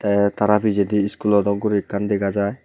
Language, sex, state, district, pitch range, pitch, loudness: Chakma, male, Tripura, Unakoti, 100-105 Hz, 100 Hz, -20 LUFS